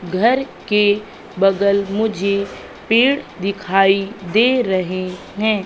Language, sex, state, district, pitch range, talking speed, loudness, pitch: Hindi, female, Madhya Pradesh, Katni, 195-220 Hz, 95 wpm, -17 LUFS, 200 Hz